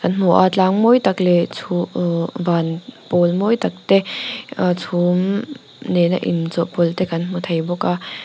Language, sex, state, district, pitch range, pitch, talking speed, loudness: Mizo, female, Mizoram, Aizawl, 175-190 Hz, 180 Hz, 175 wpm, -18 LUFS